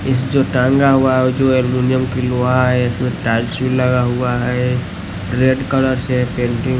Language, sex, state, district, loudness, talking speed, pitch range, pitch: Hindi, male, Odisha, Nuapada, -16 LUFS, 195 wpm, 125-130 Hz, 125 Hz